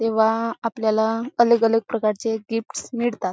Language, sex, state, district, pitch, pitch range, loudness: Marathi, female, Maharashtra, Chandrapur, 225 Hz, 220-230 Hz, -22 LUFS